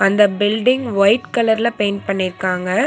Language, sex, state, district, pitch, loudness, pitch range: Tamil, female, Tamil Nadu, Nilgiris, 205 Hz, -17 LUFS, 195-225 Hz